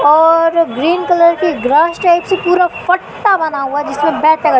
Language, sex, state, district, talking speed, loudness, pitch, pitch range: Hindi, female, Madhya Pradesh, Katni, 170 wpm, -12 LUFS, 330 Hz, 295-345 Hz